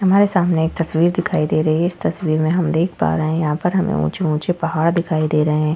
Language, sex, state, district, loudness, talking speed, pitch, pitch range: Hindi, female, Uttar Pradesh, Etah, -18 LUFS, 260 wpm, 165 Hz, 155-175 Hz